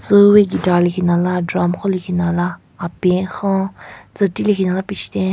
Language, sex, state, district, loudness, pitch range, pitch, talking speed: Rengma, female, Nagaland, Kohima, -17 LUFS, 175-195 Hz, 185 Hz, 135 wpm